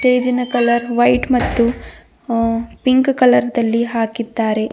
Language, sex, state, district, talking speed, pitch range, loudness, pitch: Kannada, female, Karnataka, Bidar, 125 wpm, 230-250 Hz, -16 LUFS, 240 Hz